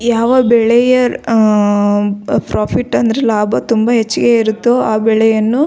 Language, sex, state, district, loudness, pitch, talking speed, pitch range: Kannada, female, Karnataka, Belgaum, -12 LUFS, 230 Hz, 115 wpm, 215-240 Hz